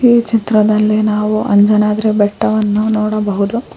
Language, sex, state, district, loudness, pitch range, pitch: Kannada, female, Karnataka, Koppal, -13 LUFS, 210-215 Hz, 215 Hz